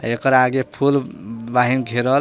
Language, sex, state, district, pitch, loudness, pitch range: Bhojpuri, male, Jharkhand, Palamu, 125 Hz, -18 LUFS, 120-135 Hz